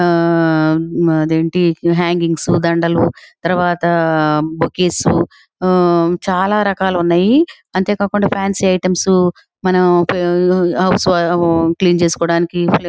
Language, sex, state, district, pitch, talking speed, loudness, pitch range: Telugu, female, Andhra Pradesh, Guntur, 175 Hz, 75 wpm, -14 LUFS, 170-185 Hz